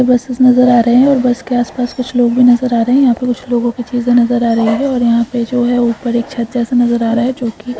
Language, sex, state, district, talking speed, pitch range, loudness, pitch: Hindi, female, Maharashtra, Aurangabad, 325 wpm, 235-250 Hz, -13 LUFS, 245 Hz